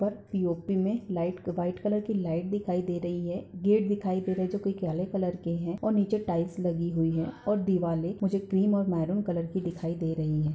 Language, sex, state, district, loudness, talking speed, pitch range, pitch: Hindi, female, Bihar, Saran, -29 LUFS, 235 wpm, 170-200 Hz, 180 Hz